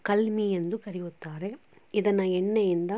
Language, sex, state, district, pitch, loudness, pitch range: Kannada, female, Karnataka, Chamarajanagar, 195 Hz, -28 LUFS, 180-210 Hz